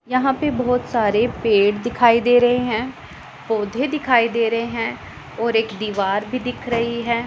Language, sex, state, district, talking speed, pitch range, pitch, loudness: Hindi, female, Punjab, Pathankot, 175 wpm, 225-245 Hz, 235 Hz, -19 LUFS